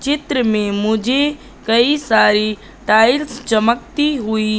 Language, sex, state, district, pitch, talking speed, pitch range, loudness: Hindi, female, Madhya Pradesh, Katni, 235 Hz, 105 wpm, 215-280 Hz, -16 LUFS